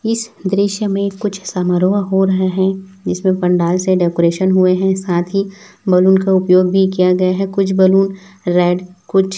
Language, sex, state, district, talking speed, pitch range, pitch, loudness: Hindi, male, Chhattisgarh, Raipur, 175 wpm, 185-195 Hz, 190 Hz, -15 LUFS